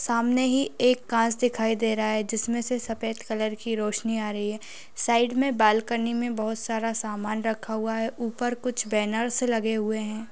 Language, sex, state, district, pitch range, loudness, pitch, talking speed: Hindi, female, Bihar, Bhagalpur, 220-235 Hz, -26 LUFS, 225 Hz, 190 wpm